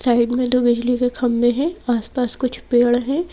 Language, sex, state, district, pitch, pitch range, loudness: Hindi, female, Madhya Pradesh, Bhopal, 245 Hz, 240-255 Hz, -19 LUFS